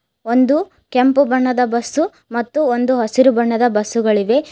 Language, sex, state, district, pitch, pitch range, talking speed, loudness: Kannada, female, Karnataka, Koppal, 250 Hz, 235-265 Hz, 120 wpm, -16 LUFS